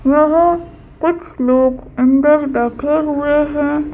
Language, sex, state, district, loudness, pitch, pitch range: Hindi, female, Madhya Pradesh, Bhopal, -15 LUFS, 295 Hz, 265-305 Hz